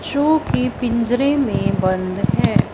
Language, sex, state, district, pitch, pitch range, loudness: Hindi, female, Punjab, Fazilka, 240 Hz, 185-275 Hz, -18 LUFS